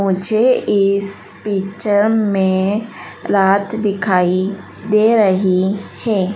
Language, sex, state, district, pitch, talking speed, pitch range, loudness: Hindi, female, Madhya Pradesh, Dhar, 200 Hz, 85 wpm, 190-210 Hz, -16 LUFS